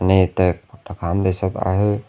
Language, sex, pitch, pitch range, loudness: Marathi, male, 95 Hz, 95-105 Hz, -20 LUFS